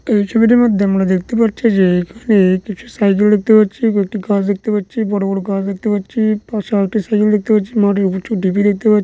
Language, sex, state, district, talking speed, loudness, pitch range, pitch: Bengali, male, West Bengal, Dakshin Dinajpur, 220 wpm, -15 LUFS, 195-220 Hz, 205 Hz